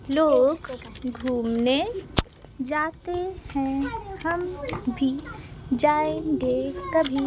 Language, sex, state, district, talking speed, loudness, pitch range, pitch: Hindi, female, Madhya Pradesh, Bhopal, 65 wpm, -25 LUFS, 265-330 Hz, 290 Hz